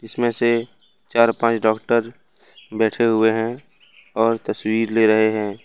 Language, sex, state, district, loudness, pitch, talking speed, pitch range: Hindi, male, Jharkhand, Ranchi, -19 LUFS, 115 Hz, 140 wpm, 110-115 Hz